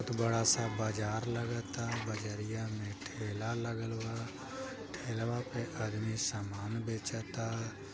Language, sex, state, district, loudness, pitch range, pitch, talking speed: Bhojpuri, male, Uttar Pradesh, Gorakhpur, -37 LUFS, 110-115 Hz, 115 Hz, 115 wpm